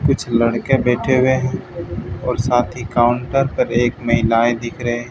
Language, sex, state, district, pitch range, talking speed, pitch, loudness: Hindi, male, Bihar, Katihar, 115-130 Hz, 165 wpm, 120 Hz, -18 LUFS